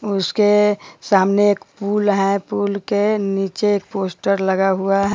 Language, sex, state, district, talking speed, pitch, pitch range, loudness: Hindi, female, Bihar, Bhagalpur, 150 wpm, 200 Hz, 195-205 Hz, -18 LUFS